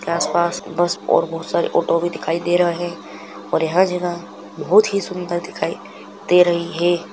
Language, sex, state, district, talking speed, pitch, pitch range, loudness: Hindi, male, Chhattisgarh, Balrampur, 175 wpm, 175 Hz, 170-180 Hz, -19 LUFS